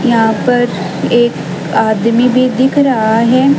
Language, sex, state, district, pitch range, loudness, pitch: Hindi, female, Haryana, Jhajjar, 225-255 Hz, -12 LUFS, 240 Hz